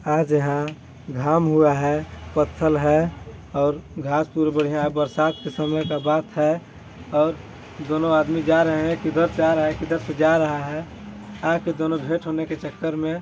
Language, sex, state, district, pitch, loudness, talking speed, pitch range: Hindi, male, Chhattisgarh, Balrampur, 155 Hz, -22 LUFS, 175 wpm, 150-160 Hz